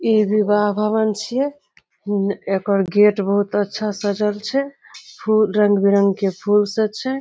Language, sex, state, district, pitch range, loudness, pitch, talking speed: Maithili, female, Bihar, Saharsa, 200-215 Hz, -19 LUFS, 210 Hz, 140 wpm